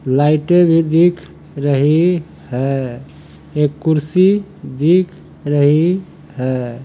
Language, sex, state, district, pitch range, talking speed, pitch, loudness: Hindi, male, Uttar Pradesh, Hamirpur, 140-175 Hz, 90 wpm, 155 Hz, -15 LUFS